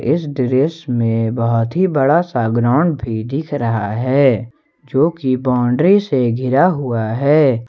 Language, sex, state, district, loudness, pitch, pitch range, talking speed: Hindi, male, Jharkhand, Ranchi, -16 LUFS, 130 Hz, 115-145 Hz, 150 wpm